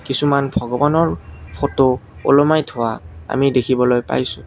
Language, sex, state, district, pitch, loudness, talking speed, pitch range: Assamese, male, Assam, Kamrup Metropolitan, 125 Hz, -17 LUFS, 105 wpm, 105-140 Hz